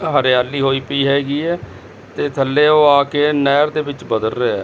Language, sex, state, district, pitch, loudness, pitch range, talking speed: Punjabi, male, Chandigarh, Chandigarh, 140 Hz, -16 LUFS, 130-145 Hz, 220 wpm